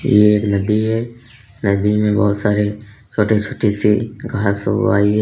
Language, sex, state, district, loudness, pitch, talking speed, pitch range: Hindi, male, Uttar Pradesh, Lalitpur, -17 LUFS, 105 Hz, 170 wpm, 105-110 Hz